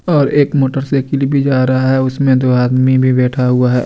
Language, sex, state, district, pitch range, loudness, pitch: Hindi, male, Jharkhand, Deoghar, 130-140 Hz, -13 LUFS, 130 Hz